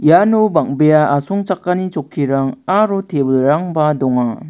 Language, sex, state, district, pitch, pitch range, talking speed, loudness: Garo, male, Meghalaya, West Garo Hills, 155 Hz, 135-185 Hz, 95 wpm, -15 LUFS